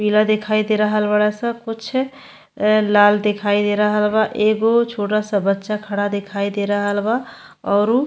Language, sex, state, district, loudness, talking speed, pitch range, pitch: Bhojpuri, female, Uttar Pradesh, Ghazipur, -18 LUFS, 180 wpm, 205-215 Hz, 210 Hz